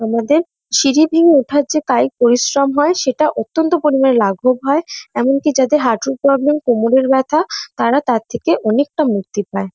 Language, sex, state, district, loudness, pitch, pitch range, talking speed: Bengali, female, West Bengal, North 24 Parganas, -15 LUFS, 275 Hz, 240-300 Hz, 160 wpm